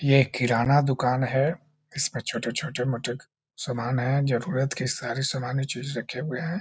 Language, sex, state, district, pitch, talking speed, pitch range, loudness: Hindi, male, Bihar, Jahanabad, 130 Hz, 155 wpm, 125-140 Hz, -26 LUFS